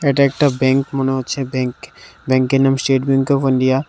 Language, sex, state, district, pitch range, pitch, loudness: Bengali, male, Tripura, West Tripura, 130-140 Hz, 135 Hz, -16 LUFS